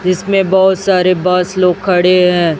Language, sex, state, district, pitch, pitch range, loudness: Hindi, female, Chhattisgarh, Raipur, 185 Hz, 180-190 Hz, -12 LUFS